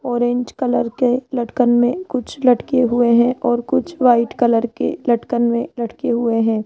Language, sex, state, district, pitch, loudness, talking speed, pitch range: Hindi, female, Rajasthan, Jaipur, 240 Hz, -17 LUFS, 170 wpm, 235-250 Hz